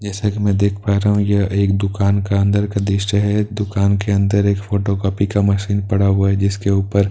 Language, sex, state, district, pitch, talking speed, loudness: Hindi, male, Bihar, Katihar, 100 Hz, 235 wpm, -17 LUFS